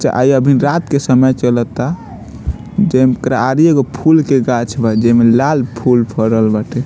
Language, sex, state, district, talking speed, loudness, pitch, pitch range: Bhojpuri, male, Bihar, Muzaffarpur, 160 wpm, -13 LUFS, 130 Hz, 120-140 Hz